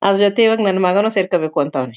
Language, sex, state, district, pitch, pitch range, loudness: Kannada, female, Karnataka, Mysore, 195 Hz, 175-205 Hz, -16 LUFS